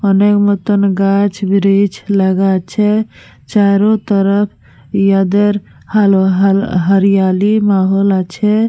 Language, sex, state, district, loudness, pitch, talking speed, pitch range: Bengali, female, Jharkhand, Jamtara, -12 LUFS, 200 Hz, 90 wpm, 195-205 Hz